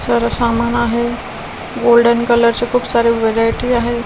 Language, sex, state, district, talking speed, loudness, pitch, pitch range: Marathi, female, Maharashtra, Washim, 145 wpm, -14 LUFS, 235 Hz, 235-240 Hz